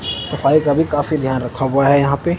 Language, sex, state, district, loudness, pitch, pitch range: Hindi, male, Punjab, Kapurthala, -16 LUFS, 140 Hz, 135-150 Hz